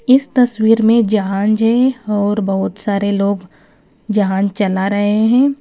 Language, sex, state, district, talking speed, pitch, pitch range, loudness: Hindi, female, Punjab, Kapurthala, 130 wpm, 210 Hz, 200-235 Hz, -15 LUFS